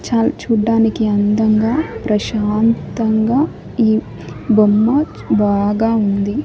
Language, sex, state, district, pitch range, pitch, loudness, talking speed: Telugu, male, Andhra Pradesh, Annamaya, 210-230 Hz, 220 Hz, -16 LUFS, 75 wpm